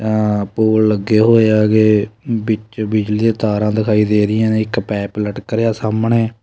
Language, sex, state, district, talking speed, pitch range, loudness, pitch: Punjabi, male, Punjab, Kapurthala, 170 wpm, 105-110 Hz, -15 LUFS, 110 Hz